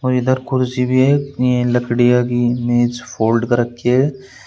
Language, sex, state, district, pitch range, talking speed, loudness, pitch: Hindi, male, Uttar Pradesh, Shamli, 120-130 Hz, 160 wpm, -16 LUFS, 125 Hz